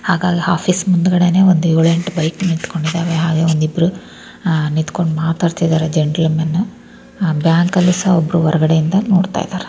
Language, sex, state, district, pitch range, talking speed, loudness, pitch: Kannada, female, Karnataka, Raichur, 160-180 Hz, 120 wpm, -15 LUFS, 170 Hz